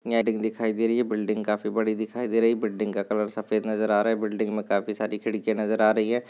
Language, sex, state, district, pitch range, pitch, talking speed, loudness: Hindi, male, Rajasthan, Nagaur, 105-110 Hz, 110 Hz, 265 wpm, -26 LUFS